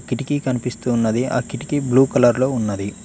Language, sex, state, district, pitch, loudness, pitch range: Telugu, male, Telangana, Mahabubabad, 125 Hz, -19 LUFS, 120-130 Hz